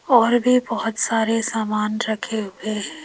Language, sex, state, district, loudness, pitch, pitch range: Hindi, female, Rajasthan, Jaipur, -21 LUFS, 225 Hz, 215-235 Hz